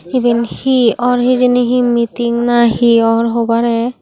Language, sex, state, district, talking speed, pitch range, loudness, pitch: Chakma, female, Tripura, Unakoti, 150 wpm, 235-245 Hz, -13 LUFS, 235 Hz